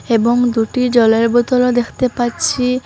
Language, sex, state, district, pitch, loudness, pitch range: Bengali, female, Assam, Hailakandi, 245 Hz, -14 LUFS, 235-250 Hz